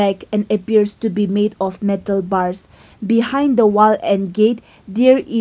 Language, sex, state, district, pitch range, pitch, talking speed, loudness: English, female, Nagaland, Kohima, 200-225 Hz, 210 Hz, 190 wpm, -16 LUFS